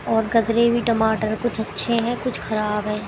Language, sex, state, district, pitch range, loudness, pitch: Hindi, female, Haryana, Jhajjar, 215-235 Hz, -21 LUFS, 225 Hz